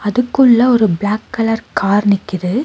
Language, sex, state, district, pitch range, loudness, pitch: Tamil, female, Tamil Nadu, Nilgiris, 205-245 Hz, -14 LUFS, 220 Hz